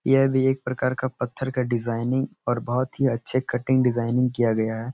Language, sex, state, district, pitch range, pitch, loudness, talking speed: Hindi, male, Uttar Pradesh, Etah, 120-130 Hz, 125 Hz, -23 LUFS, 205 wpm